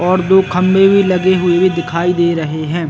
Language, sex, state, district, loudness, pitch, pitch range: Hindi, male, Chhattisgarh, Bilaspur, -13 LUFS, 180 Hz, 170-185 Hz